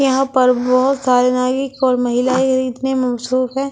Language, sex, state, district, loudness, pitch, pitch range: Hindi, female, Delhi, New Delhi, -16 LUFS, 255 Hz, 250-265 Hz